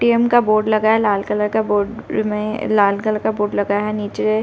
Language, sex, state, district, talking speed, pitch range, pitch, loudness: Hindi, female, Uttar Pradesh, Deoria, 215 wpm, 210-220 Hz, 215 Hz, -18 LUFS